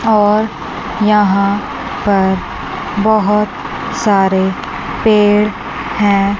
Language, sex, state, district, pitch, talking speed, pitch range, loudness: Hindi, female, Chandigarh, Chandigarh, 205 Hz, 65 wpm, 200-215 Hz, -14 LUFS